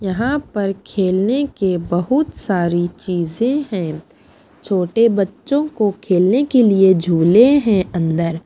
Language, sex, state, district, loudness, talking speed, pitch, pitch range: Hindi, female, Punjab, Pathankot, -17 LUFS, 120 wpm, 195 Hz, 175-235 Hz